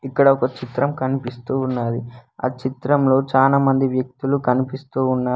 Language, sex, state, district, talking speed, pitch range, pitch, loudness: Telugu, male, Telangana, Hyderabad, 135 wpm, 125-135 Hz, 130 Hz, -20 LUFS